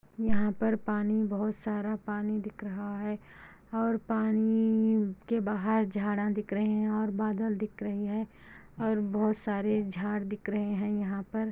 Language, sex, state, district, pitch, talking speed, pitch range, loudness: Hindi, female, Andhra Pradesh, Anantapur, 210 Hz, 165 wpm, 205-220 Hz, -31 LUFS